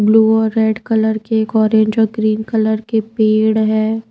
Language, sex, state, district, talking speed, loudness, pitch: Hindi, female, Maharashtra, Washim, 190 wpm, -15 LUFS, 220 Hz